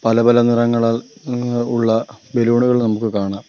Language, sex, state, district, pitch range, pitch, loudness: Malayalam, male, Kerala, Kollam, 115-120 Hz, 120 Hz, -17 LUFS